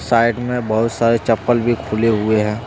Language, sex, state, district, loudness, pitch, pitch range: Hindi, male, Jharkhand, Deoghar, -17 LUFS, 115 Hz, 110-120 Hz